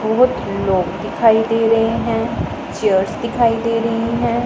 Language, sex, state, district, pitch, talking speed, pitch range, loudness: Hindi, female, Punjab, Pathankot, 225 Hz, 150 wpm, 210-230 Hz, -17 LUFS